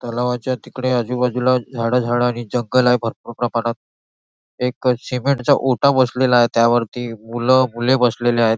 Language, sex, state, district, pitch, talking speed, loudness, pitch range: Marathi, male, Maharashtra, Nagpur, 125 Hz, 145 wpm, -18 LUFS, 120-130 Hz